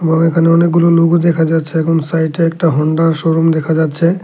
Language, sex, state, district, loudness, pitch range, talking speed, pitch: Bengali, male, Tripura, Unakoti, -12 LUFS, 160-170 Hz, 185 wpm, 165 Hz